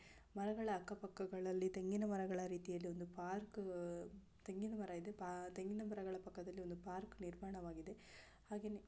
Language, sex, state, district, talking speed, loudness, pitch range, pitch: Kannada, female, Karnataka, Gulbarga, 135 wpm, -47 LUFS, 180-200 Hz, 190 Hz